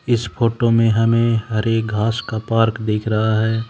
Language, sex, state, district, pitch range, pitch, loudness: Hindi, male, Haryana, Charkhi Dadri, 110-115 Hz, 115 Hz, -18 LUFS